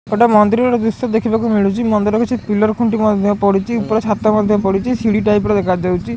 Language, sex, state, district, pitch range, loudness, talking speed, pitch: Odia, male, Odisha, Khordha, 205-225 Hz, -15 LUFS, 195 wpm, 215 Hz